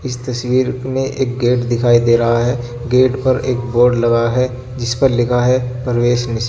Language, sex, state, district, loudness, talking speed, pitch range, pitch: Hindi, male, Jharkhand, Garhwa, -15 LUFS, 195 wpm, 120-130 Hz, 125 Hz